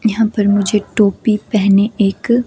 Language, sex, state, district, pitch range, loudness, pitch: Hindi, female, Himachal Pradesh, Shimla, 200-220 Hz, -14 LUFS, 210 Hz